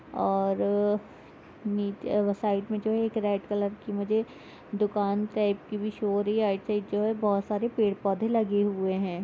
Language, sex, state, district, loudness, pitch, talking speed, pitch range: Hindi, female, Jharkhand, Jamtara, -28 LUFS, 205 Hz, 190 wpm, 200-215 Hz